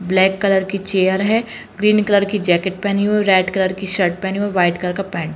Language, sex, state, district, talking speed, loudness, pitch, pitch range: Kumaoni, female, Uttarakhand, Uttarkashi, 270 wpm, -17 LUFS, 190 Hz, 185-200 Hz